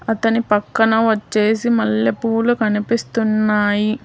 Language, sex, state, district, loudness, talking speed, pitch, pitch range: Telugu, female, Telangana, Hyderabad, -17 LUFS, 75 wpm, 220 Hz, 210-225 Hz